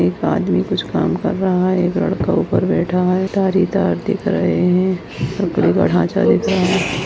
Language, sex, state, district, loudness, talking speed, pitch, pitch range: Hindi, female, Chhattisgarh, Bastar, -17 LUFS, 195 wpm, 185 Hz, 180-190 Hz